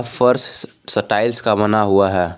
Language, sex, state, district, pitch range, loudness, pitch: Hindi, male, Jharkhand, Garhwa, 95-120 Hz, -16 LUFS, 105 Hz